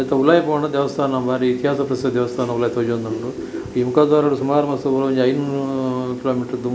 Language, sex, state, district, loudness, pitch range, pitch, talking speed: Tulu, male, Karnataka, Dakshina Kannada, -19 LUFS, 125-140 Hz, 130 Hz, 150 wpm